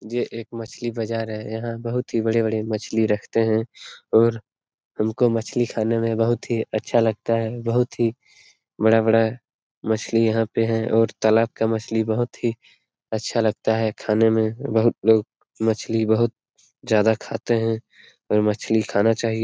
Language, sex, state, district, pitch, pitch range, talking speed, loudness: Hindi, male, Bihar, Darbhanga, 115 Hz, 110-115 Hz, 160 wpm, -22 LUFS